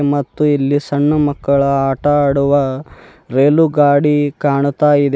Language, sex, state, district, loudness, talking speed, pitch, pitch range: Kannada, male, Karnataka, Bidar, -14 LUFS, 115 wpm, 145 Hz, 140-145 Hz